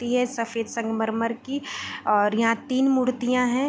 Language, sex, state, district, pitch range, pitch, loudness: Hindi, female, Bihar, Vaishali, 230-255 Hz, 240 Hz, -24 LUFS